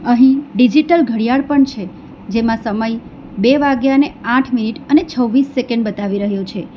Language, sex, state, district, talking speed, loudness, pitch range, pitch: Gujarati, female, Gujarat, Valsad, 160 wpm, -15 LUFS, 225-275 Hz, 245 Hz